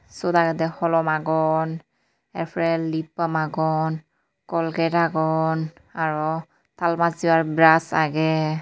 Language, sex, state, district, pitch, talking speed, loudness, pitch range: Chakma, female, Tripura, Unakoti, 160 Hz, 110 wpm, -22 LUFS, 160-165 Hz